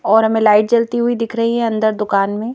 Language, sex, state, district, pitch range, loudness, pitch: Hindi, female, Madhya Pradesh, Bhopal, 215-235 Hz, -15 LUFS, 225 Hz